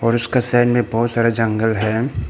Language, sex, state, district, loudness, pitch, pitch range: Hindi, male, Arunachal Pradesh, Papum Pare, -17 LUFS, 115 Hz, 115-120 Hz